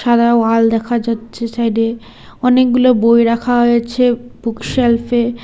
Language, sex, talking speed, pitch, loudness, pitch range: Bengali, female, 130 wpm, 235 Hz, -14 LUFS, 230-245 Hz